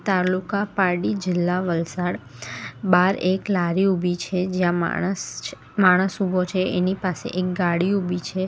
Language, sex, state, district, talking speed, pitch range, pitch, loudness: Gujarati, female, Gujarat, Valsad, 150 wpm, 180-190 Hz, 185 Hz, -22 LUFS